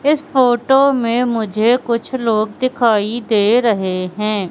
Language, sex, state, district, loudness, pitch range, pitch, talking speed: Hindi, female, Madhya Pradesh, Katni, -16 LUFS, 215-255 Hz, 235 Hz, 135 wpm